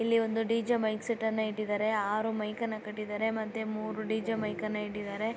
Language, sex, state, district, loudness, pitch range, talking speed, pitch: Kannada, female, Karnataka, Raichur, -32 LUFS, 215-225 Hz, 155 wpm, 220 Hz